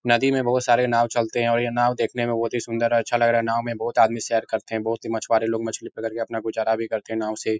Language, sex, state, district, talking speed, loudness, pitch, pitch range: Hindi, male, Uttar Pradesh, Etah, 330 wpm, -23 LUFS, 115 Hz, 110-120 Hz